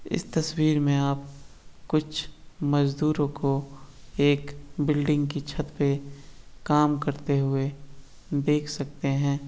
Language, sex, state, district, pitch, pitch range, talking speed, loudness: Hindi, male, Bihar, East Champaran, 145 Hz, 140-150 Hz, 115 wpm, -26 LUFS